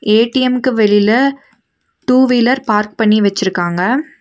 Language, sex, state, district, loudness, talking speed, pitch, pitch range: Tamil, female, Tamil Nadu, Nilgiris, -13 LUFS, 100 wpm, 230 Hz, 210-255 Hz